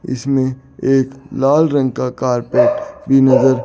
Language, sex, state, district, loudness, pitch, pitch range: Hindi, male, Chandigarh, Chandigarh, -15 LUFS, 135 Hz, 130-140 Hz